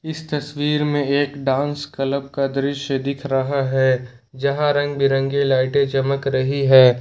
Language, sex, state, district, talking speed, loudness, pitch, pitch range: Hindi, male, Jharkhand, Ranchi, 155 wpm, -19 LUFS, 140 Hz, 135-145 Hz